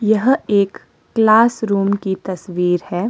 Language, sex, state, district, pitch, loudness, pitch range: Hindi, female, Himachal Pradesh, Shimla, 200 Hz, -17 LUFS, 185-220 Hz